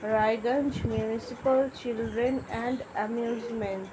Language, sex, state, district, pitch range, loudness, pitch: Bengali, female, West Bengal, Dakshin Dinajpur, 220-255 Hz, -29 LUFS, 235 Hz